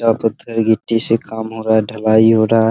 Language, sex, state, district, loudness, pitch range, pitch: Hindi, male, Bihar, Araria, -15 LUFS, 110-115 Hz, 110 Hz